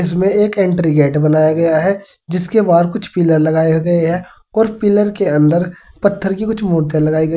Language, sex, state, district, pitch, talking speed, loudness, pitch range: Hindi, male, Uttar Pradesh, Saharanpur, 175 Hz, 205 wpm, -14 LUFS, 160-200 Hz